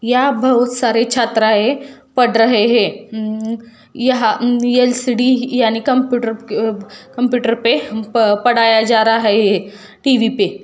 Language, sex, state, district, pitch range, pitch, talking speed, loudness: Hindi, female, Jharkhand, Jamtara, 220-250 Hz, 230 Hz, 135 wpm, -15 LUFS